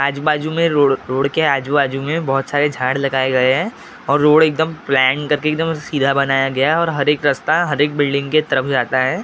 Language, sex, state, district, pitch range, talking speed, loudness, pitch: Hindi, male, Maharashtra, Gondia, 135-155 Hz, 225 wpm, -16 LUFS, 145 Hz